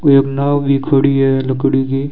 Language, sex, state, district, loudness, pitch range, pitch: Hindi, male, Rajasthan, Bikaner, -14 LUFS, 135-140 Hz, 135 Hz